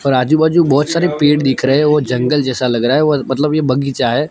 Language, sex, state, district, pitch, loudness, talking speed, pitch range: Hindi, male, Gujarat, Gandhinagar, 145 Hz, -14 LUFS, 280 wpm, 130-150 Hz